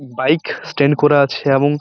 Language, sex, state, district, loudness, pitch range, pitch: Bengali, male, West Bengal, Purulia, -15 LUFS, 135-150 Hz, 140 Hz